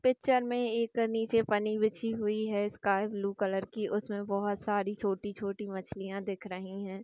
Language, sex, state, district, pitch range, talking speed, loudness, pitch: Hindi, female, Chhattisgarh, Bastar, 200-220 Hz, 170 wpm, -32 LUFS, 205 Hz